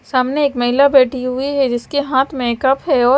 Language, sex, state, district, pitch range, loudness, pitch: Hindi, female, Himachal Pradesh, Shimla, 255-280 Hz, -16 LUFS, 265 Hz